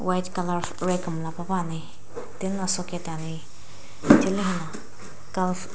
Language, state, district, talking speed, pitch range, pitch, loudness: Sumi, Nagaland, Dimapur, 115 wpm, 170-185 Hz, 180 Hz, -26 LUFS